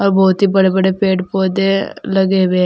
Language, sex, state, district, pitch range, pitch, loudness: Hindi, female, Uttar Pradesh, Saharanpur, 190-195 Hz, 190 Hz, -14 LUFS